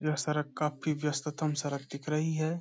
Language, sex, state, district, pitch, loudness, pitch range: Hindi, male, Bihar, Saharsa, 150 Hz, -33 LUFS, 150-155 Hz